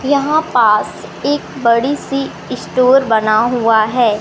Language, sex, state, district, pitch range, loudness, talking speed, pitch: Hindi, male, Madhya Pradesh, Katni, 225-275 Hz, -14 LUFS, 130 wpm, 250 Hz